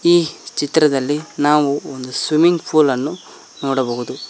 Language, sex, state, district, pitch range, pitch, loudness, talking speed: Kannada, male, Karnataka, Koppal, 135-155 Hz, 145 Hz, -17 LUFS, 110 wpm